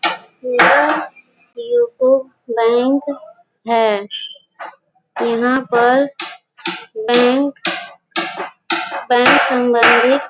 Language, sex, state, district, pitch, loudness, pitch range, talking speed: Hindi, female, Uttar Pradesh, Gorakhpur, 255 Hz, -15 LUFS, 235-285 Hz, 60 wpm